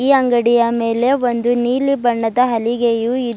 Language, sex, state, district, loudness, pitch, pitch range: Kannada, female, Karnataka, Bidar, -16 LUFS, 240 Hz, 235-250 Hz